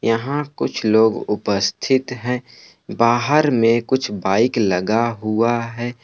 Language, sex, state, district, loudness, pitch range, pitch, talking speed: Hindi, male, Jharkhand, Palamu, -19 LUFS, 110-125 Hz, 115 Hz, 120 wpm